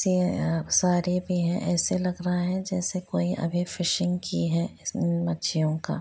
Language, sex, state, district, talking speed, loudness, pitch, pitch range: Hindi, female, Jharkhand, Jamtara, 180 wpm, -26 LUFS, 180 Hz, 165-180 Hz